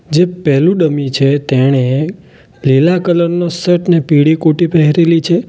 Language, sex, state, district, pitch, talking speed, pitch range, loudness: Gujarati, male, Gujarat, Valsad, 165 Hz, 155 wpm, 145-175 Hz, -12 LUFS